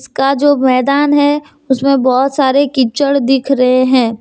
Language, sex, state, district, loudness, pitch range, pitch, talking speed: Hindi, female, Jharkhand, Deoghar, -12 LUFS, 260-285 Hz, 270 Hz, 155 wpm